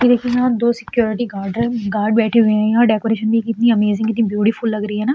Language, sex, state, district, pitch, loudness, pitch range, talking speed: Hindi, female, Uttar Pradesh, Etah, 225 Hz, -17 LUFS, 215-235 Hz, 255 wpm